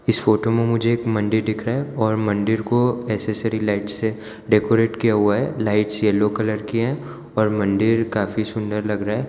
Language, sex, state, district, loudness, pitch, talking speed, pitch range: Hindi, male, Gujarat, Valsad, -20 LUFS, 110 Hz, 200 wpm, 105-115 Hz